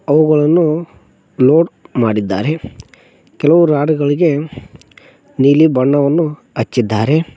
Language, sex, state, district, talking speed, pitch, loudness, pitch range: Kannada, male, Karnataka, Koppal, 75 wpm, 150 Hz, -14 LUFS, 130-160 Hz